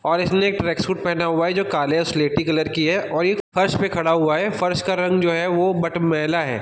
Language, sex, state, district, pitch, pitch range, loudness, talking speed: Hindi, male, Bihar, East Champaran, 170 Hz, 165-185 Hz, -20 LUFS, 270 wpm